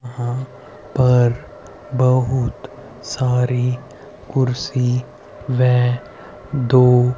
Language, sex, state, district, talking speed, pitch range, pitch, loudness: Hindi, male, Haryana, Rohtak, 60 wpm, 125-130 Hz, 125 Hz, -18 LUFS